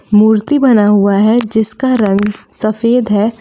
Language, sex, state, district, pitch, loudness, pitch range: Hindi, female, Jharkhand, Palamu, 215 Hz, -11 LUFS, 210-235 Hz